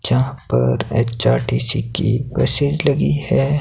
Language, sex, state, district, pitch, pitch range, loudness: Hindi, male, Himachal Pradesh, Shimla, 130 Hz, 115-145 Hz, -18 LUFS